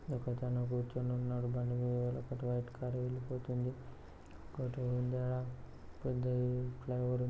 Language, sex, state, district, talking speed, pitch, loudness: Telugu, male, Andhra Pradesh, Guntur, 90 wpm, 125 Hz, -38 LUFS